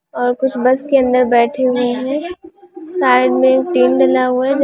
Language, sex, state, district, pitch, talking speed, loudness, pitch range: Hindi, female, Maharashtra, Solapur, 250 Hz, 180 wpm, -14 LUFS, 235-280 Hz